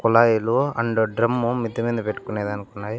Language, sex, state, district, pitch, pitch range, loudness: Telugu, male, Andhra Pradesh, Annamaya, 115 Hz, 105-115 Hz, -22 LUFS